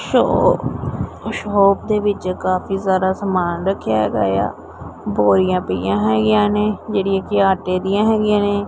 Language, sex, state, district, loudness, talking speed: Punjabi, male, Punjab, Pathankot, -18 LUFS, 140 wpm